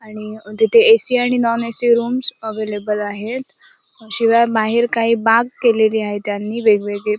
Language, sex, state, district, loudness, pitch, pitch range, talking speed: Marathi, female, Maharashtra, Sindhudurg, -16 LUFS, 225 Hz, 215-235 Hz, 140 wpm